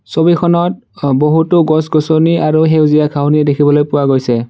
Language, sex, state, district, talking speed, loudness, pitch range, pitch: Assamese, male, Assam, Sonitpur, 135 wpm, -12 LUFS, 145-160 Hz, 155 Hz